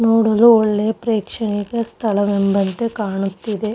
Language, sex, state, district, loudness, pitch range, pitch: Kannada, female, Karnataka, Shimoga, -17 LUFS, 205-225 Hz, 215 Hz